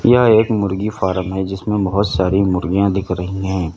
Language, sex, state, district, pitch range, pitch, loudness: Hindi, male, Uttar Pradesh, Lalitpur, 95-100 Hz, 95 Hz, -17 LUFS